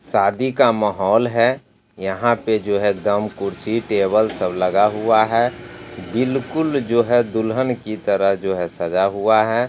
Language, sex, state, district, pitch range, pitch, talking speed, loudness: Hindi, male, Bihar, Sitamarhi, 100-120 Hz, 110 Hz, 160 wpm, -19 LUFS